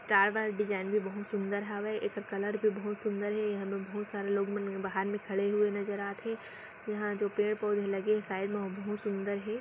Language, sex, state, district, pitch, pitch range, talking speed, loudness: Hindi, female, Chhattisgarh, Raigarh, 205 Hz, 200-210 Hz, 230 wpm, -33 LUFS